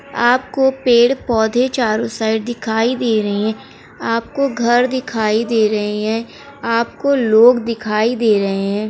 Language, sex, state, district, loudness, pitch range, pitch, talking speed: Hindi, female, Uttar Pradesh, Muzaffarnagar, -16 LUFS, 220-245 Hz, 230 Hz, 140 wpm